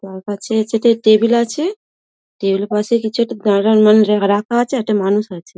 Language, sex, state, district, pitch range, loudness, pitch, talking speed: Bengali, female, West Bengal, Dakshin Dinajpur, 205-235 Hz, -15 LUFS, 215 Hz, 215 wpm